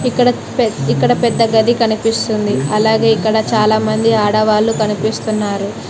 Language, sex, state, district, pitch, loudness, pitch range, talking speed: Telugu, female, Telangana, Mahabubabad, 220 Hz, -14 LUFS, 215-225 Hz, 110 wpm